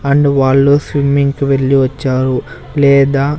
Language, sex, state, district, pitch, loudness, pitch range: Telugu, male, Andhra Pradesh, Sri Satya Sai, 140 Hz, -12 LUFS, 135-140 Hz